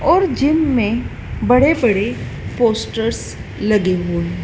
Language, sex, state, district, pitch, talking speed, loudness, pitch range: Hindi, female, Madhya Pradesh, Dhar, 230 Hz, 110 wpm, -17 LUFS, 210-275 Hz